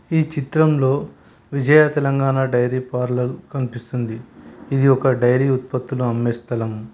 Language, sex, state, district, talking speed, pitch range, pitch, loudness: Telugu, male, Telangana, Hyderabad, 110 wpm, 120-140 Hz, 130 Hz, -19 LUFS